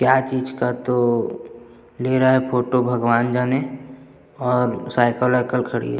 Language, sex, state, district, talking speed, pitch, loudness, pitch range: Hindi, male, Chhattisgarh, Jashpur, 140 wpm, 125 Hz, -20 LUFS, 120-130 Hz